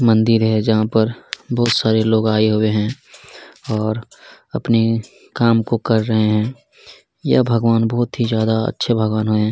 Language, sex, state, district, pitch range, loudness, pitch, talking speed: Hindi, male, Chhattisgarh, Kabirdham, 110-115 Hz, -17 LUFS, 110 Hz, 155 wpm